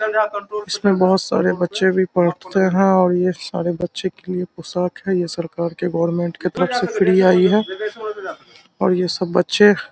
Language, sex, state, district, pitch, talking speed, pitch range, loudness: Hindi, male, Bihar, Samastipur, 185 Hz, 180 wpm, 180-195 Hz, -18 LUFS